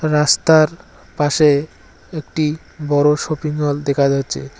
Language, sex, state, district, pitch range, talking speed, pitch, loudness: Bengali, male, West Bengal, Cooch Behar, 145-155 Hz, 105 wpm, 150 Hz, -17 LUFS